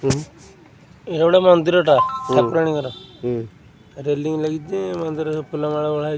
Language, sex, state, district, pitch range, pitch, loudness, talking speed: Odia, male, Odisha, Khordha, 145-165 Hz, 155 Hz, -19 LUFS, 135 wpm